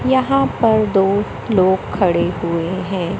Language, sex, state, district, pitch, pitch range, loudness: Hindi, male, Madhya Pradesh, Katni, 190 Hz, 175-220 Hz, -17 LUFS